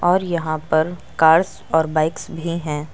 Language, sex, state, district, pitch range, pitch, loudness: Hindi, female, Uttar Pradesh, Lucknow, 155-170 Hz, 160 Hz, -19 LUFS